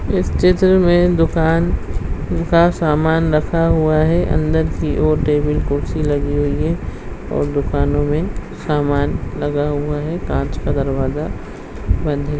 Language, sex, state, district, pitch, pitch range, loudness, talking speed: Hindi, female, Bihar, Madhepura, 150 Hz, 145-165 Hz, -17 LUFS, 140 wpm